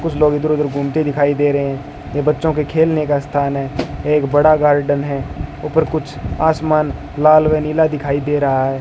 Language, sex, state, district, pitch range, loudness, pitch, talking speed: Hindi, male, Rajasthan, Bikaner, 140-155 Hz, -16 LUFS, 145 Hz, 205 wpm